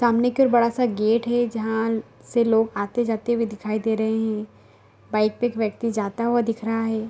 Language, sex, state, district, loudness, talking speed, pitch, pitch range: Hindi, female, Bihar, Saharsa, -23 LUFS, 220 wpm, 225 Hz, 215-235 Hz